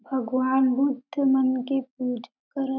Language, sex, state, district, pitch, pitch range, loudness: Chhattisgarhi, female, Chhattisgarh, Jashpur, 265 Hz, 255-270 Hz, -25 LUFS